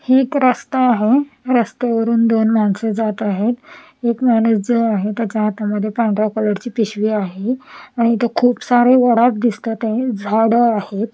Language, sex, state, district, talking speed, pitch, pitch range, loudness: Marathi, female, Maharashtra, Washim, 150 wpm, 230 Hz, 215-245 Hz, -16 LUFS